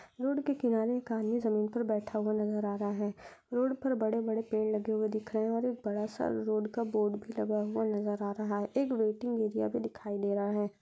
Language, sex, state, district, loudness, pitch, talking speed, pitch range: Hindi, female, Chhattisgarh, Kabirdham, -33 LUFS, 215 Hz, 240 wpm, 210-230 Hz